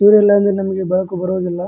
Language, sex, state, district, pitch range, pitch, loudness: Kannada, male, Karnataka, Dharwad, 185-200 Hz, 190 Hz, -15 LUFS